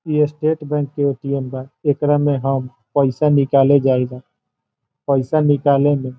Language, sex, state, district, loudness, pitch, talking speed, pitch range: Bhojpuri, male, Bihar, Saran, -18 LUFS, 140 Hz, 175 wpm, 135-145 Hz